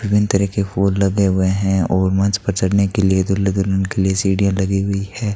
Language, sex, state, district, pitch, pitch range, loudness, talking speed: Hindi, male, Rajasthan, Bikaner, 95 Hz, 95-100 Hz, -17 LUFS, 235 wpm